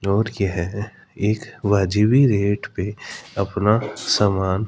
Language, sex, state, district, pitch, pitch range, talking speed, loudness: Hindi, male, Rajasthan, Jaipur, 105 Hz, 100-110 Hz, 100 wpm, -21 LUFS